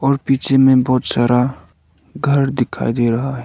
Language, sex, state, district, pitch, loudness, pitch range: Hindi, male, Arunachal Pradesh, Lower Dibang Valley, 130 Hz, -16 LUFS, 120-135 Hz